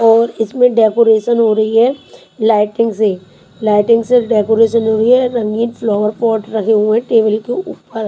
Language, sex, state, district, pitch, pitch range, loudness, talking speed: Hindi, female, Haryana, Charkhi Dadri, 225 Hz, 215-230 Hz, -13 LUFS, 170 wpm